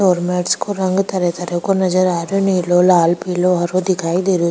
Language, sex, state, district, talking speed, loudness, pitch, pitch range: Rajasthani, female, Rajasthan, Nagaur, 225 wpm, -16 LUFS, 180 Hz, 175-185 Hz